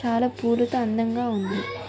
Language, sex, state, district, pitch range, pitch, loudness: Telugu, female, Telangana, Nalgonda, 205-240 Hz, 230 Hz, -25 LUFS